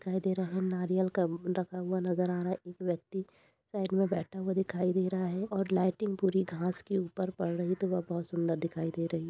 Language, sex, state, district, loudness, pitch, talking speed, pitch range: Hindi, female, Uttar Pradesh, Budaun, -33 LUFS, 185 Hz, 245 wpm, 180-190 Hz